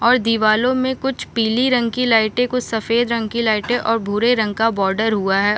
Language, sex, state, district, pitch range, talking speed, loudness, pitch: Hindi, female, Maharashtra, Chandrapur, 220-245 Hz, 215 wpm, -18 LUFS, 230 Hz